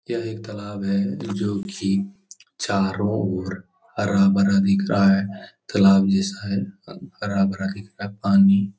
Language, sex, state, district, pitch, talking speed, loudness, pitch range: Hindi, male, Bihar, Jahanabad, 100 Hz, 150 wpm, -21 LUFS, 95-100 Hz